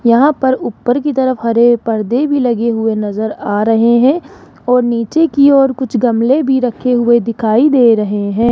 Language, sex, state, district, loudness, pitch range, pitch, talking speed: Hindi, male, Rajasthan, Jaipur, -12 LUFS, 230-265 Hz, 240 Hz, 190 wpm